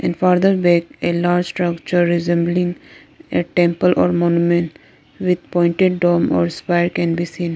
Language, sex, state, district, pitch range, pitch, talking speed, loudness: English, female, Arunachal Pradesh, Lower Dibang Valley, 170-180 Hz, 175 Hz, 150 wpm, -17 LUFS